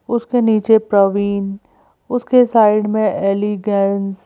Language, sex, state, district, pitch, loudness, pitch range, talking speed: Hindi, female, Madhya Pradesh, Bhopal, 210 Hz, -15 LUFS, 200-230 Hz, 115 wpm